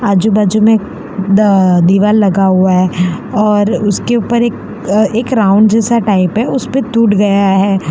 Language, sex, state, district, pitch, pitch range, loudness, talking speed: Hindi, female, Gujarat, Valsad, 205 Hz, 195-225 Hz, -11 LUFS, 175 wpm